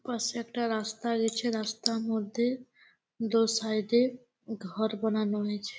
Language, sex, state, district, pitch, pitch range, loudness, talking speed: Bengali, female, West Bengal, Malda, 225 Hz, 220-235 Hz, -30 LUFS, 135 wpm